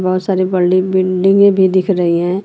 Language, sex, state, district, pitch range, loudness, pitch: Hindi, female, Uttar Pradesh, Lucknow, 185-190 Hz, -13 LUFS, 185 Hz